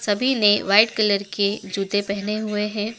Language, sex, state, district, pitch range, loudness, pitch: Hindi, female, Madhya Pradesh, Dhar, 200-215 Hz, -20 LUFS, 210 Hz